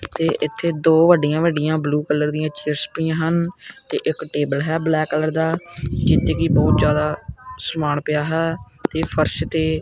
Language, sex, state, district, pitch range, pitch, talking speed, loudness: Punjabi, male, Punjab, Kapurthala, 150-165 Hz, 155 Hz, 170 wpm, -20 LUFS